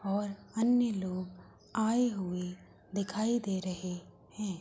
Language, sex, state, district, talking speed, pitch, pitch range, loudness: Hindi, female, Uttar Pradesh, Hamirpur, 115 wpm, 200 Hz, 185-220 Hz, -33 LUFS